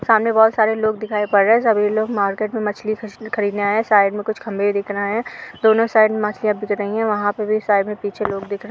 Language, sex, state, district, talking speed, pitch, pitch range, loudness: Hindi, female, Uttar Pradesh, Jalaun, 280 wpm, 210 Hz, 205-220 Hz, -18 LUFS